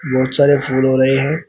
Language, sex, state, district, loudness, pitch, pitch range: Hindi, male, Uttar Pradesh, Shamli, -15 LUFS, 135 Hz, 130-140 Hz